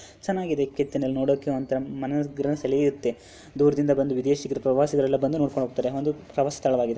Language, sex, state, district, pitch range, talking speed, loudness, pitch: Kannada, male, Karnataka, Dharwad, 130-145 Hz, 135 wpm, -25 LUFS, 140 Hz